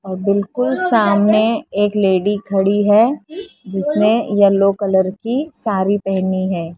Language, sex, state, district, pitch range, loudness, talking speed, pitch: Hindi, female, Maharashtra, Mumbai Suburban, 190-215 Hz, -16 LUFS, 125 wpm, 200 Hz